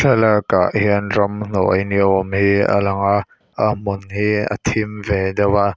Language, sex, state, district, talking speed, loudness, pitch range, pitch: Mizo, male, Mizoram, Aizawl, 175 wpm, -17 LUFS, 100-105 Hz, 100 Hz